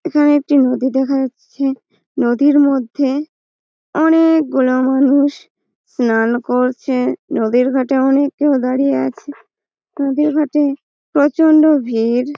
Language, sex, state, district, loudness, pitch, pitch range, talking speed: Bengali, female, West Bengal, Malda, -15 LUFS, 275 Hz, 255-290 Hz, 100 wpm